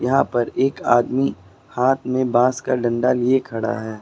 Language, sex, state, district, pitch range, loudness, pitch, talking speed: Hindi, male, Uttar Pradesh, Lucknow, 115-130 Hz, -20 LUFS, 125 Hz, 180 wpm